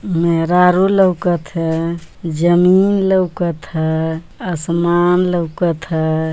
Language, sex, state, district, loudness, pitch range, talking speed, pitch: Bhojpuri, female, Uttar Pradesh, Ghazipur, -16 LUFS, 165-180 Hz, 95 wpm, 170 Hz